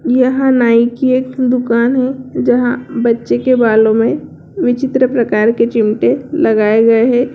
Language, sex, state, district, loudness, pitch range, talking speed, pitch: Hindi, female, Bihar, Sitamarhi, -13 LUFS, 230-255 Hz, 145 wpm, 245 Hz